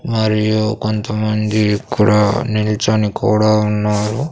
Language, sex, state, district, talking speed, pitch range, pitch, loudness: Telugu, male, Andhra Pradesh, Sri Satya Sai, 85 wpm, 105-110 Hz, 105 Hz, -16 LUFS